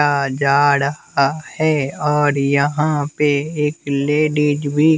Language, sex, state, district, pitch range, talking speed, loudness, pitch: Hindi, male, Bihar, West Champaran, 140-150 Hz, 110 wpm, -17 LUFS, 145 Hz